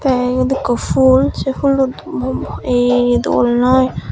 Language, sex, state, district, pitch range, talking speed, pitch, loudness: Chakma, female, Tripura, Dhalai, 245-265 Hz, 130 wpm, 255 Hz, -15 LUFS